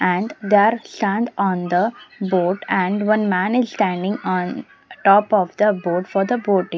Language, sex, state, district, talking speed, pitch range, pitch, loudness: English, female, Punjab, Pathankot, 170 wpm, 185-215 Hz, 200 Hz, -19 LUFS